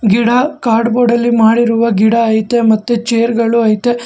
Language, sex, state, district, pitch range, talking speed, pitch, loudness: Kannada, male, Karnataka, Bangalore, 225-240 Hz, 160 wpm, 235 Hz, -12 LUFS